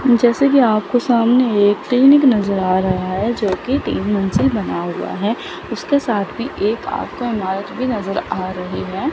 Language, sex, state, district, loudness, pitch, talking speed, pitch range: Hindi, female, Chandigarh, Chandigarh, -17 LUFS, 215 Hz, 185 wpm, 195-250 Hz